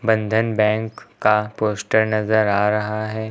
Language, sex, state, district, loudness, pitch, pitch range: Hindi, male, Uttar Pradesh, Lucknow, -19 LUFS, 110 Hz, 105-110 Hz